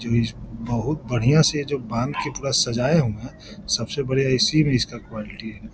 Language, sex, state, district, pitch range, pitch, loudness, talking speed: Hindi, male, Bihar, Lakhisarai, 115-140 Hz, 120 Hz, -22 LUFS, 210 wpm